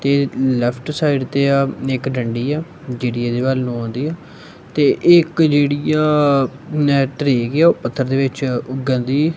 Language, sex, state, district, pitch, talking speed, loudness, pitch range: Punjabi, male, Punjab, Kapurthala, 140 Hz, 165 wpm, -17 LUFS, 130-150 Hz